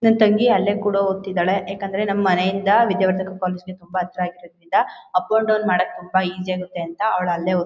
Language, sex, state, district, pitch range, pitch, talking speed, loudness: Kannada, female, Karnataka, Mysore, 180-200 Hz, 190 Hz, 210 wpm, -20 LUFS